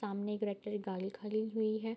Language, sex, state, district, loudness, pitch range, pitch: Hindi, female, Bihar, Bhagalpur, -38 LUFS, 200-220 Hz, 210 Hz